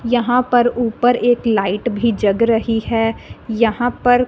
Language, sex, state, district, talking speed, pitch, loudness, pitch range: Hindi, female, Punjab, Fazilka, 155 wpm, 235 Hz, -17 LUFS, 225-245 Hz